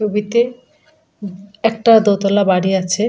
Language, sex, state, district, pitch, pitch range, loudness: Bengali, female, West Bengal, Malda, 210 Hz, 200-230 Hz, -15 LUFS